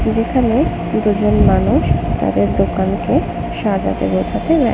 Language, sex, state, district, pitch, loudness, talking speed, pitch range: Bengali, female, West Bengal, Kolkata, 230 Hz, -16 LUFS, 125 wpm, 210-255 Hz